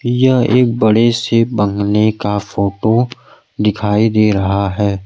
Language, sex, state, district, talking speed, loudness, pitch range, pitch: Hindi, male, Bihar, Kaimur, 130 wpm, -14 LUFS, 105-120 Hz, 110 Hz